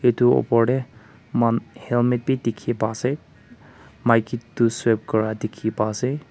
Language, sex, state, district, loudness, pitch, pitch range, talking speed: Nagamese, male, Nagaland, Kohima, -22 LUFS, 115 Hz, 110-125 Hz, 160 wpm